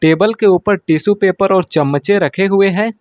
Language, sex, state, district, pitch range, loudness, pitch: Hindi, male, Uttar Pradesh, Lucknow, 175-205 Hz, -13 LUFS, 195 Hz